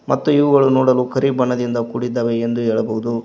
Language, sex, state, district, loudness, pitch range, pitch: Kannada, male, Karnataka, Koppal, -17 LUFS, 115-130 Hz, 120 Hz